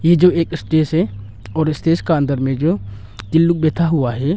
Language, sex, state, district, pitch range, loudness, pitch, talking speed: Hindi, male, Arunachal Pradesh, Longding, 130-165 Hz, -17 LUFS, 155 Hz, 220 wpm